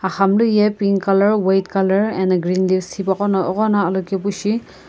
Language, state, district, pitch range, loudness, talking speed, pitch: Sumi, Nagaland, Kohima, 190-205 Hz, -17 LUFS, 145 wpm, 195 Hz